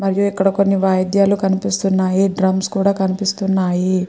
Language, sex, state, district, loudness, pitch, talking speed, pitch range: Telugu, female, Andhra Pradesh, Srikakulam, -17 LUFS, 195 Hz, 115 wpm, 190-195 Hz